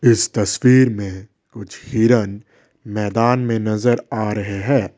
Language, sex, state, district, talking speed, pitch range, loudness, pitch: Hindi, male, Assam, Kamrup Metropolitan, 130 wpm, 105-120 Hz, -18 LUFS, 110 Hz